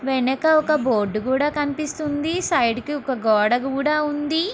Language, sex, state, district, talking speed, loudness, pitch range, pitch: Telugu, female, Andhra Pradesh, Guntur, 145 wpm, -21 LUFS, 255-305 Hz, 290 Hz